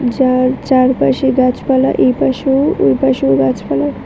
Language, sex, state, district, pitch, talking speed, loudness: Bengali, female, Tripura, West Tripura, 255 Hz, 90 wpm, -13 LUFS